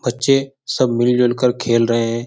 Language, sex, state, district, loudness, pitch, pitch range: Hindi, male, Bihar, Jahanabad, -17 LUFS, 125 Hz, 120-130 Hz